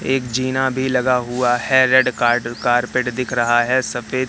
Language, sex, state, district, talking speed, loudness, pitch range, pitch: Hindi, male, Madhya Pradesh, Katni, 180 wpm, -17 LUFS, 120-130 Hz, 125 Hz